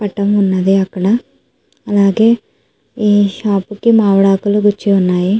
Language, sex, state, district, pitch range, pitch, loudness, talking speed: Telugu, female, Andhra Pradesh, Chittoor, 195-210 Hz, 205 Hz, -13 LUFS, 110 wpm